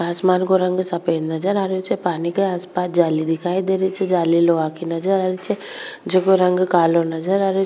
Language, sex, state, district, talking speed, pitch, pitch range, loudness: Rajasthani, female, Rajasthan, Churu, 235 wpm, 180 Hz, 170-190 Hz, -19 LUFS